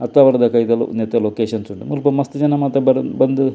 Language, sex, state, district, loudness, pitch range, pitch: Tulu, male, Karnataka, Dakshina Kannada, -17 LUFS, 115-140 Hz, 130 Hz